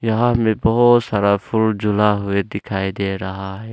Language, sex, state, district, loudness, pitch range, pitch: Hindi, male, Arunachal Pradesh, Longding, -18 LUFS, 100-110 Hz, 105 Hz